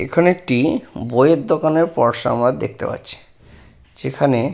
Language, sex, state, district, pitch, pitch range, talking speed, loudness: Bengali, male, West Bengal, Purulia, 125 Hz, 120-165 Hz, 130 wpm, -18 LUFS